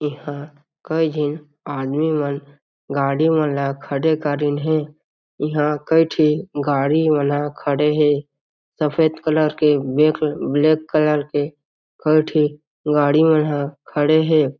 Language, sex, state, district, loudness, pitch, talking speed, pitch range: Chhattisgarhi, male, Chhattisgarh, Jashpur, -19 LUFS, 150 Hz, 135 wpm, 145-155 Hz